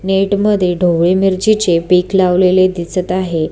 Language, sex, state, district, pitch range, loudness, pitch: Marathi, female, Maharashtra, Solapur, 180-195 Hz, -13 LUFS, 185 Hz